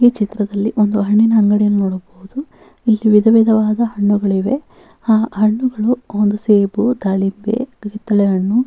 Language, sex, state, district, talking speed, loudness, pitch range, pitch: Kannada, female, Karnataka, Bellary, 110 wpm, -15 LUFS, 205-225 Hz, 215 Hz